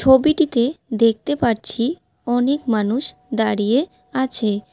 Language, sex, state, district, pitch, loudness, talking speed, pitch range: Bengali, female, West Bengal, Alipurduar, 240 Hz, -19 LUFS, 90 wpm, 220-270 Hz